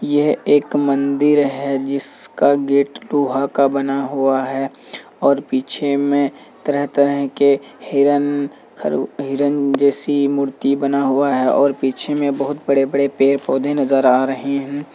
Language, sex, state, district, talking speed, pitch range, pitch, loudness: Hindi, male, Bihar, Kishanganj, 130 wpm, 135-140 Hz, 140 Hz, -17 LUFS